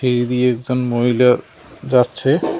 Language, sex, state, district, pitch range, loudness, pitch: Bengali, male, West Bengal, Cooch Behar, 125-130 Hz, -17 LUFS, 125 Hz